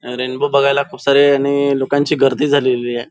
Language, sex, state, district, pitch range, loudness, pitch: Marathi, male, Maharashtra, Nagpur, 130-145 Hz, -15 LUFS, 140 Hz